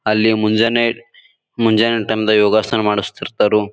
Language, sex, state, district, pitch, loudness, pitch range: Kannada, male, Karnataka, Bijapur, 110 Hz, -16 LUFS, 105-115 Hz